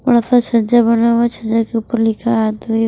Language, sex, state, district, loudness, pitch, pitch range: Hindi, female, Bihar, West Champaran, -15 LUFS, 230 Hz, 225-235 Hz